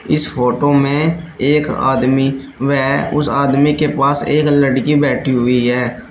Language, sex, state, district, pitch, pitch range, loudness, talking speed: Hindi, male, Uttar Pradesh, Shamli, 140 Hz, 130-150 Hz, -14 LUFS, 145 wpm